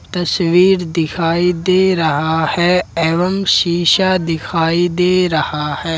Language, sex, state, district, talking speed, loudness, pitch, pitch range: Hindi, male, Jharkhand, Ranchi, 110 wpm, -15 LUFS, 175 Hz, 165-180 Hz